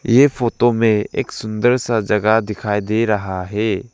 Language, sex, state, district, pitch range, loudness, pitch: Hindi, male, Arunachal Pradesh, Lower Dibang Valley, 105-120 Hz, -17 LUFS, 110 Hz